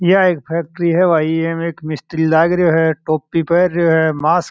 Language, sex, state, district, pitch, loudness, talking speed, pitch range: Marwari, male, Rajasthan, Churu, 165 Hz, -15 LUFS, 170 wpm, 160-175 Hz